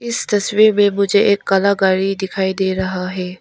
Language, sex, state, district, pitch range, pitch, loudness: Hindi, female, Arunachal Pradesh, Lower Dibang Valley, 190-205 Hz, 195 Hz, -16 LUFS